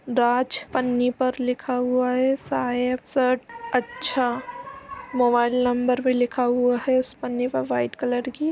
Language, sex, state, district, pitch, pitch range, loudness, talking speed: Hindi, female, Uttar Pradesh, Jalaun, 250 Hz, 245-260 Hz, -23 LUFS, 155 wpm